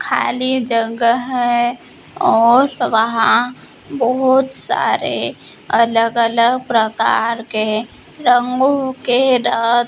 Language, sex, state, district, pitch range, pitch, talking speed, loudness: Hindi, female, Maharashtra, Gondia, 230-255 Hz, 240 Hz, 85 wpm, -15 LUFS